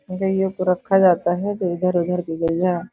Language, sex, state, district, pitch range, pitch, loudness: Hindi, female, Uttar Pradesh, Gorakhpur, 175-190 Hz, 180 Hz, -20 LUFS